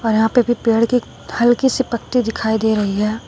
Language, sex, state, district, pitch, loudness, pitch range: Hindi, female, Uttar Pradesh, Shamli, 230 Hz, -17 LUFS, 220-245 Hz